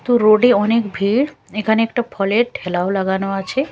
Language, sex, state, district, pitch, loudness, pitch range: Bengali, female, Chhattisgarh, Raipur, 215 Hz, -17 LUFS, 195-240 Hz